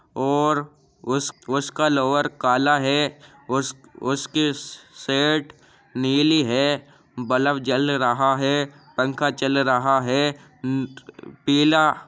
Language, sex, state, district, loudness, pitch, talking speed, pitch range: Hindi, male, Uttar Pradesh, Jyotiba Phule Nagar, -21 LUFS, 140 Hz, 115 wpm, 135-145 Hz